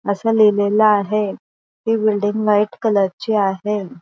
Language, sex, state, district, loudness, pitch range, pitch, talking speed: Marathi, female, Maharashtra, Aurangabad, -17 LUFS, 205-215 Hz, 210 Hz, 135 wpm